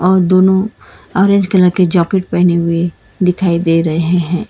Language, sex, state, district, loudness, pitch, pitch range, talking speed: Hindi, female, Karnataka, Bangalore, -13 LUFS, 180 Hz, 170-190 Hz, 160 wpm